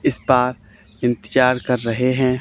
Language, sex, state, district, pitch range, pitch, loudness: Hindi, male, Haryana, Charkhi Dadri, 115-125 Hz, 125 Hz, -19 LUFS